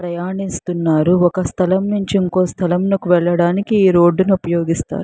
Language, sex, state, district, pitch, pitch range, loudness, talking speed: Telugu, female, Andhra Pradesh, Chittoor, 180 Hz, 175-190 Hz, -16 LUFS, 130 wpm